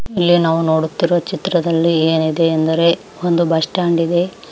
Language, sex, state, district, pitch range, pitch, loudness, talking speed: Kannada, female, Karnataka, Raichur, 165-175 Hz, 170 Hz, -16 LUFS, 135 wpm